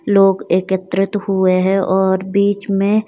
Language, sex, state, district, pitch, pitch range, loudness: Hindi, female, Himachal Pradesh, Shimla, 195 Hz, 190-200 Hz, -16 LUFS